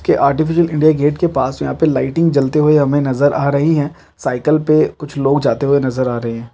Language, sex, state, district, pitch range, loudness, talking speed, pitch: Hindi, male, Chhattisgarh, Raigarh, 135-155 Hz, -15 LUFS, 240 wpm, 145 Hz